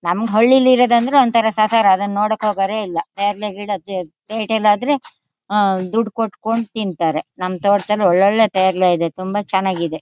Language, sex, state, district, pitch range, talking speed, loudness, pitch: Kannada, female, Karnataka, Shimoga, 190-220 Hz, 175 wpm, -17 LUFS, 205 Hz